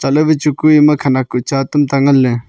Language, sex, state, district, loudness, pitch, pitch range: Wancho, male, Arunachal Pradesh, Longding, -12 LUFS, 140 Hz, 130-150 Hz